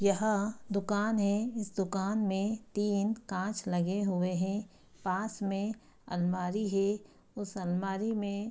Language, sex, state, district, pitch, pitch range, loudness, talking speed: Hindi, female, Bihar, East Champaran, 200 Hz, 195-215 Hz, -33 LUFS, 135 wpm